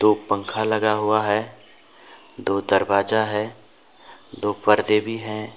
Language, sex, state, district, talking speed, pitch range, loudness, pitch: Hindi, male, West Bengal, Alipurduar, 130 wpm, 105-110 Hz, -22 LUFS, 105 Hz